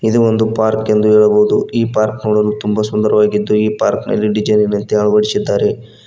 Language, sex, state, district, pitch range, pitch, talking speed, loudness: Kannada, male, Karnataka, Koppal, 105-110 Hz, 105 Hz, 140 wpm, -14 LUFS